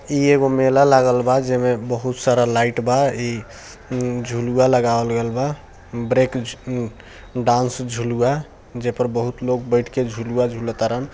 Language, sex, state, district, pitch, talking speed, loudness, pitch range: Bhojpuri, male, Bihar, East Champaran, 125 Hz, 165 wpm, -19 LUFS, 120-130 Hz